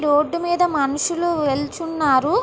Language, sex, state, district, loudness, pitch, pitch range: Telugu, female, Andhra Pradesh, Guntur, -20 LUFS, 310 Hz, 290-345 Hz